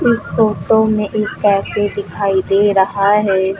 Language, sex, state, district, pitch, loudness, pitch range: Hindi, female, Uttar Pradesh, Lucknow, 205 Hz, -15 LUFS, 195-215 Hz